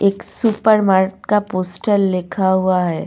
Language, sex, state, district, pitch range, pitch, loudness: Hindi, female, Goa, North and South Goa, 185-210 Hz, 195 Hz, -17 LUFS